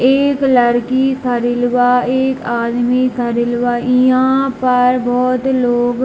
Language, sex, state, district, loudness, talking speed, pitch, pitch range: Hindi, male, Bihar, Darbhanga, -14 LUFS, 130 wpm, 250 Hz, 245-255 Hz